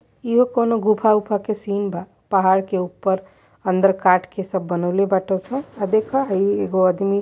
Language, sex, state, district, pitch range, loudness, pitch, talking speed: Hindi, male, Uttar Pradesh, Varanasi, 190-215 Hz, -20 LUFS, 195 Hz, 210 wpm